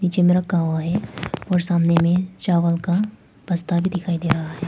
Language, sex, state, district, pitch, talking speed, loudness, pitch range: Hindi, female, Arunachal Pradesh, Papum Pare, 175 Hz, 195 wpm, -21 LUFS, 170-180 Hz